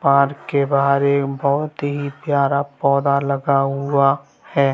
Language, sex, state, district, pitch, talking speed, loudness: Hindi, male, Bihar, Gaya, 140 Hz, 140 wpm, -19 LUFS